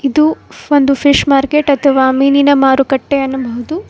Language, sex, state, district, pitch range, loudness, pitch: Kannada, female, Karnataka, Koppal, 270-285 Hz, -12 LUFS, 275 Hz